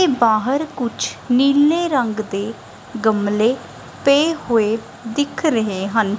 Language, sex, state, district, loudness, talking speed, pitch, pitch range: Punjabi, female, Punjab, Kapurthala, -18 LUFS, 105 wpm, 235 Hz, 220-280 Hz